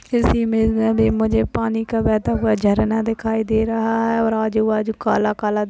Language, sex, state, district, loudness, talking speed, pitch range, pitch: Hindi, female, Uttar Pradesh, Hamirpur, -19 LUFS, 210 wpm, 215-225 Hz, 220 Hz